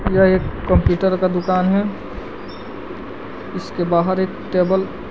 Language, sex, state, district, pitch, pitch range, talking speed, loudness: Hindi, male, Bihar, West Champaran, 185 Hz, 180-190 Hz, 130 wpm, -18 LUFS